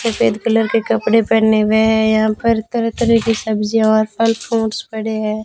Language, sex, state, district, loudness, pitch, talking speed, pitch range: Hindi, female, Rajasthan, Bikaner, -16 LUFS, 220 Hz, 200 wpm, 220-225 Hz